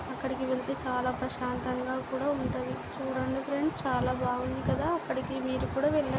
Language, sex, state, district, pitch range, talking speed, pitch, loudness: Telugu, female, Andhra Pradesh, Guntur, 255-285 Hz, 145 wpm, 260 Hz, -32 LUFS